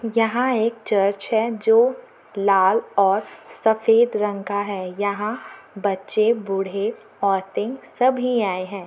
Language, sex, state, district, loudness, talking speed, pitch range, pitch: Hindi, female, Jharkhand, Jamtara, -21 LUFS, 130 wpm, 195-230 Hz, 210 Hz